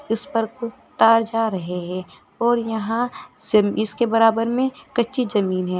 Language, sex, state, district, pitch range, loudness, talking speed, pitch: Hindi, female, Uttar Pradesh, Saharanpur, 205-235 Hz, -21 LUFS, 155 wpm, 225 Hz